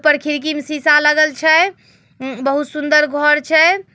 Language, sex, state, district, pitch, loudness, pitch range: Magahi, female, Bihar, Samastipur, 300 Hz, -14 LUFS, 295-310 Hz